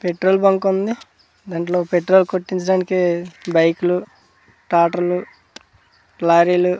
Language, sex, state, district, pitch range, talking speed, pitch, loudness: Telugu, male, Andhra Pradesh, Manyam, 175-185 Hz, 80 wpm, 180 Hz, -18 LUFS